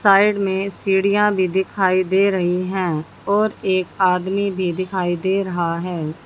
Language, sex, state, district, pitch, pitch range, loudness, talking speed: Hindi, female, Haryana, Jhajjar, 190 Hz, 180-195 Hz, -19 LUFS, 155 wpm